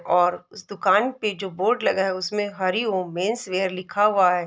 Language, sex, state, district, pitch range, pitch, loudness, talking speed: Hindi, female, Uttar Pradesh, Deoria, 185-210 Hz, 190 Hz, -23 LUFS, 200 wpm